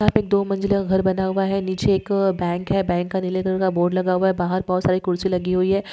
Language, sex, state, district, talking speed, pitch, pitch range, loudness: Hindi, female, Maharashtra, Nagpur, 305 wpm, 190 Hz, 185-195 Hz, -21 LUFS